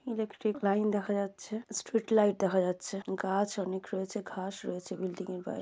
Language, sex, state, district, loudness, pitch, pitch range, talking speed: Bengali, female, West Bengal, Jalpaiguri, -33 LUFS, 200 Hz, 190-215 Hz, 170 wpm